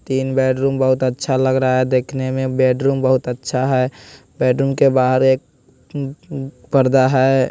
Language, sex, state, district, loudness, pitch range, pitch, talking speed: Hindi, male, Bihar, West Champaran, -17 LUFS, 130-135 Hz, 130 Hz, 150 wpm